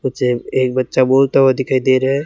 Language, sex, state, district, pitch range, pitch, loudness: Hindi, male, Rajasthan, Bikaner, 130-135 Hz, 130 Hz, -15 LUFS